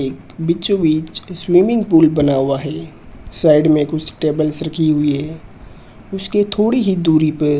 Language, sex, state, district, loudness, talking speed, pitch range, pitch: Hindi, male, Rajasthan, Bikaner, -16 LUFS, 165 wpm, 150-175 Hz, 155 Hz